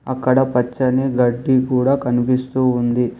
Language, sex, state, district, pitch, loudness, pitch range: Telugu, male, Telangana, Hyderabad, 125 Hz, -17 LUFS, 125-130 Hz